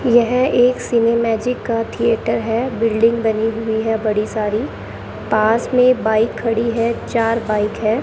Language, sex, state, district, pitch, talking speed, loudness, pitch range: Hindi, female, Rajasthan, Bikaner, 230 Hz, 155 wpm, -17 LUFS, 220-235 Hz